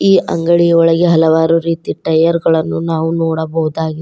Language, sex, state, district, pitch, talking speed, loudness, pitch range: Kannada, female, Karnataka, Koppal, 165 Hz, 135 wpm, -13 LUFS, 160-165 Hz